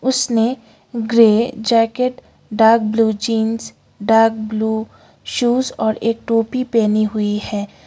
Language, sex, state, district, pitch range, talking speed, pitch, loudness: Hindi, female, Sikkim, Gangtok, 220-235 Hz, 115 wpm, 225 Hz, -17 LUFS